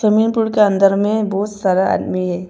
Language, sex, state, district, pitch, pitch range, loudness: Hindi, female, Arunachal Pradesh, Papum Pare, 205 Hz, 190-215 Hz, -16 LUFS